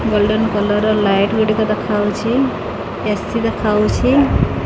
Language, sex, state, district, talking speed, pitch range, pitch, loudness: Odia, female, Odisha, Khordha, 105 wpm, 205-220 Hz, 215 Hz, -16 LUFS